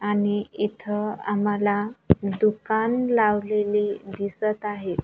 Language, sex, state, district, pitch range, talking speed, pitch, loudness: Marathi, female, Maharashtra, Gondia, 205-215 Hz, 85 wpm, 210 Hz, -24 LUFS